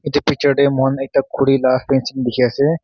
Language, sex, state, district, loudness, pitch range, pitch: Nagamese, male, Nagaland, Kohima, -16 LUFS, 130-140 Hz, 135 Hz